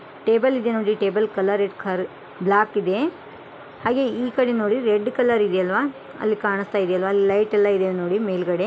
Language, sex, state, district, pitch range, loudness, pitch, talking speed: Kannada, female, Karnataka, Gulbarga, 195-230 Hz, -21 LUFS, 210 Hz, 180 wpm